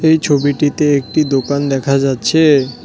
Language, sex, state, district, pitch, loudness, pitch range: Bengali, male, West Bengal, Cooch Behar, 145 Hz, -14 LUFS, 135-150 Hz